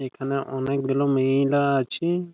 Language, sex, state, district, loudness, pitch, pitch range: Bengali, male, West Bengal, Malda, -23 LUFS, 140 Hz, 135-140 Hz